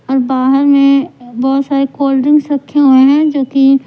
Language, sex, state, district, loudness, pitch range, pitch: Hindi, female, Punjab, Pathankot, -11 LUFS, 265-280 Hz, 275 Hz